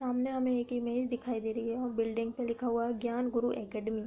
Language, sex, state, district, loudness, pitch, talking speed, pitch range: Hindi, female, Uttar Pradesh, Budaun, -34 LUFS, 235 Hz, 265 wpm, 230-245 Hz